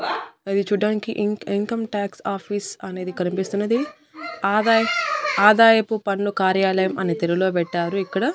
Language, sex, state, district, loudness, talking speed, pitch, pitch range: Telugu, female, Andhra Pradesh, Annamaya, -21 LUFS, 115 wpm, 205 Hz, 190-225 Hz